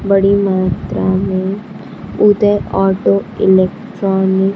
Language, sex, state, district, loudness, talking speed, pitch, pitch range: Hindi, female, Bihar, Kaimur, -14 LUFS, 90 wpm, 195 Hz, 190-205 Hz